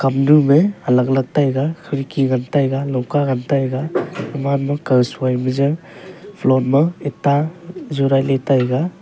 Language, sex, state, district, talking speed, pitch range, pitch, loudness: Wancho, male, Arunachal Pradesh, Longding, 155 wpm, 130-150 Hz, 140 Hz, -18 LUFS